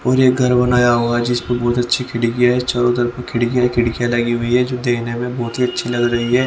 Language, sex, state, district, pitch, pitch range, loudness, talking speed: Hindi, male, Haryana, Rohtak, 120 Hz, 120-125 Hz, -17 LUFS, 260 wpm